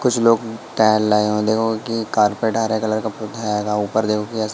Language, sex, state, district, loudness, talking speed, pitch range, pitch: Hindi, male, Madhya Pradesh, Katni, -19 LUFS, 120 wpm, 105-115 Hz, 110 Hz